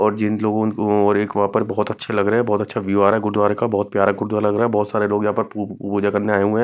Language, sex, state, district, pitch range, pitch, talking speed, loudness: Hindi, male, Maharashtra, Mumbai Suburban, 100-105 Hz, 105 Hz, 345 wpm, -19 LUFS